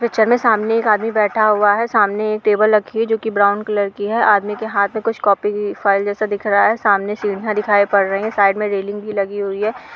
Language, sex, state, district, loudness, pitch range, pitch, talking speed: Hindi, female, Uttar Pradesh, Jalaun, -17 LUFS, 200-215 Hz, 210 Hz, 270 wpm